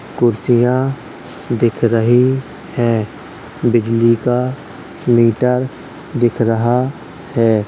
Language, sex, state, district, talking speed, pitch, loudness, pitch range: Hindi, male, Uttar Pradesh, Jalaun, 80 wpm, 120 Hz, -16 LUFS, 115-125 Hz